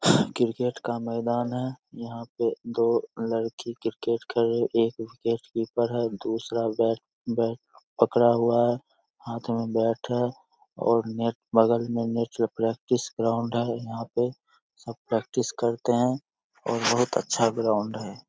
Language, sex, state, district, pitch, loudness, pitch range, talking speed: Hindi, male, Bihar, Begusarai, 115 Hz, -27 LUFS, 115-120 Hz, 140 wpm